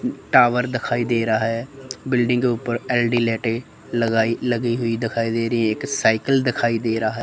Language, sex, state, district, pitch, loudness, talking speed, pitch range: Hindi, male, Chandigarh, Chandigarh, 120 Hz, -20 LUFS, 185 wpm, 115-125 Hz